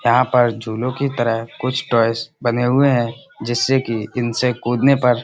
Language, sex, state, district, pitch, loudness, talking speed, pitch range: Hindi, male, Uttar Pradesh, Budaun, 120 Hz, -18 LUFS, 170 wpm, 115-130 Hz